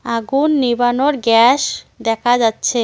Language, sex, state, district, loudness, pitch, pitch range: Bengali, female, West Bengal, Cooch Behar, -15 LUFS, 245 Hz, 230-270 Hz